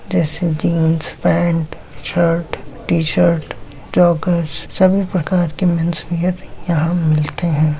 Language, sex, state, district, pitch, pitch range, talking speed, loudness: Hindi, male, Bihar, Samastipur, 170 Hz, 160-175 Hz, 105 wpm, -17 LUFS